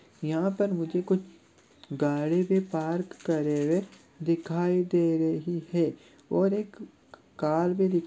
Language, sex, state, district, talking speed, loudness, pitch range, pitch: Hindi, male, Chhattisgarh, Sarguja, 135 wpm, -28 LUFS, 160-185 Hz, 170 Hz